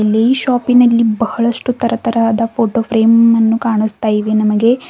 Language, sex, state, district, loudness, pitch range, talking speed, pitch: Kannada, female, Karnataka, Bidar, -13 LUFS, 225-235 Hz, 110 wpm, 230 Hz